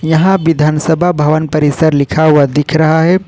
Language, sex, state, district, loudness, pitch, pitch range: Hindi, male, Jharkhand, Ranchi, -11 LUFS, 155 Hz, 150-165 Hz